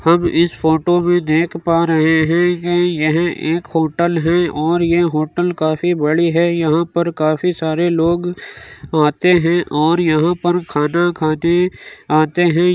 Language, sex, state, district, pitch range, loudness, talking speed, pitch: Hindi, male, Uttar Pradesh, Muzaffarnagar, 160-175 Hz, -16 LUFS, 155 wpm, 170 Hz